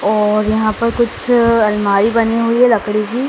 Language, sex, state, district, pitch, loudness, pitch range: Hindi, female, Madhya Pradesh, Dhar, 225 Hz, -14 LUFS, 215-235 Hz